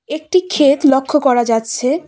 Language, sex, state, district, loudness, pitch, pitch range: Bengali, female, West Bengal, Cooch Behar, -14 LUFS, 285 Hz, 255-310 Hz